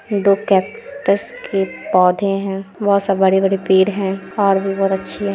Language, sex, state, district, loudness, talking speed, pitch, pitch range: Hindi, female, Bihar, Muzaffarpur, -17 LUFS, 170 wpm, 195 Hz, 190-200 Hz